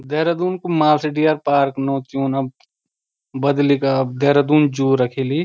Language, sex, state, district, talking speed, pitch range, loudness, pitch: Garhwali, male, Uttarakhand, Uttarkashi, 165 wpm, 135-150 Hz, -18 LUFS, 140 Hz